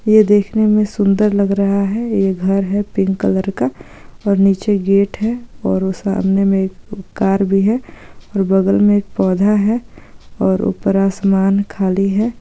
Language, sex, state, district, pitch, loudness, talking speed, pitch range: Hindi, female, Andhra Pradesh, Guntur, 195 Hz, -16 LUFS, 175 wpm, 195-205 Hz